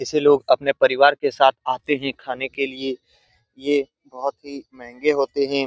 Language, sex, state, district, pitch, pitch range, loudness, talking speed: Hindi, male, Bihar, Saran, 140 Hz, 130-145 Hz, -20 LUFS, 190 wpm